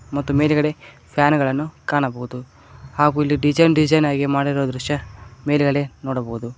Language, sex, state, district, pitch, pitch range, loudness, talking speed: Kannada, male, Karnataka, Koppal, 140 Hz, 130-150 Hz, -19 LUFS, 120 wpm